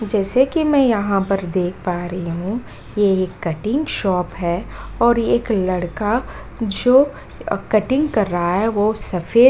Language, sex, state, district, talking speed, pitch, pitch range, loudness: Hindi, female, Bihar, Kishanganj, 160 wpm, 205 Hz, 180-235 Hz, -19 LUFS